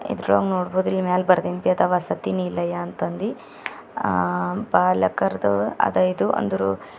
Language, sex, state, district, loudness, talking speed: Kannada, male, Karnataka, Bidar, -22 LUFS, 120 wpm